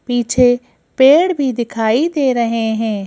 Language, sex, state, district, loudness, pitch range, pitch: Hindi, female, Madhya Pradesh, Bhopal, -14 LUFS, 225-265 Hz, 245 Hz